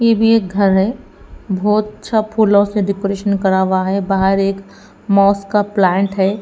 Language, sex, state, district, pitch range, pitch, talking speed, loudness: Hindi, female, Bihar, Katihar, 195-210 Hz, 200 Hz, 180 wpm, -15 LUFS